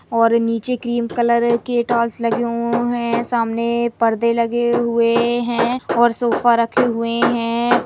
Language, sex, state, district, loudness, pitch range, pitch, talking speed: Hindi, female, Chhattisgarh, Rajnandgaon, -18 LUFS, 235-240 Hz, 235 Hz, 135 wpm